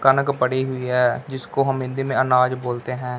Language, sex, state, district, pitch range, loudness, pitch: Hindi, male, Punjab, Fazilka, 125-135 Hz, -21 LUFS, 130 Hz